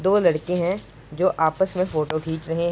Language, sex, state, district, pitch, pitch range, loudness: Hindi, female, Punjab, Pathankot, 170 Hz, 155-185 Hz, -23 LUFS